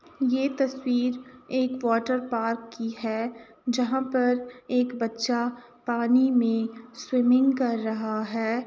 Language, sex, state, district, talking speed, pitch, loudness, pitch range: Hindi, female, Uttar Pradesh, Jalaun, 120 wpm, 245 Hz, -26 LUFS, 230-255 Hz